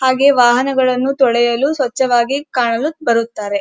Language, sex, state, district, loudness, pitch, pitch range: Kannada, female, Karnataka, Dharwad, -14 LUFS, 255 Hz, 235-270 Hz